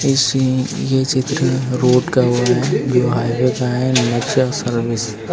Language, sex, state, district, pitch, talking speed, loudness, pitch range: Hindi, female, Uttar Pradesh, Lucknow, 125 Hz, 155 wpm, -17 LUFS, 120-130 Hz